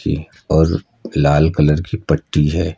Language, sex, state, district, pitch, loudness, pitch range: Hindi, male, Uttar Pradesh, Lucknow, 80 Hz, -17 LUFS, 75-85 Hz